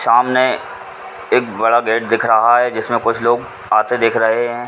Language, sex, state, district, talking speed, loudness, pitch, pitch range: Hindi, male, Uttar Pradesh, Ghazipur, 190 wpm, -15 LUFS, 115 Hz, 110-120 Hz